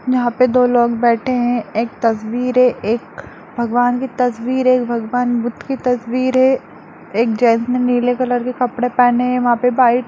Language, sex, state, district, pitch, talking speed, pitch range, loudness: Hindi, female, Bihar, Darbhanga, 245 Hz, 190 wpm, 235-250 Hz, -16 LUFS